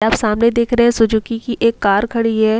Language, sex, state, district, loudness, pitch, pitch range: Hindi, female, Uttar Pradesh, Jalaun, -15 LUFS, 225 Hz, 220-235 Hz